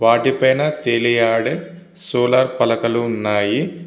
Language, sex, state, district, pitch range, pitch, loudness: Telugu, male, Andhra Pradesh, Visakhapatnam, 115-150 Hz, 120 Hz, -17 LUFS